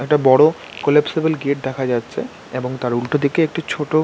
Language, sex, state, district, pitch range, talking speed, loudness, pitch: Bengali, male, West Bengal, North 24 Parganas, 130-155 Hz, 180 wpm, -18 LUFS, 145 Hz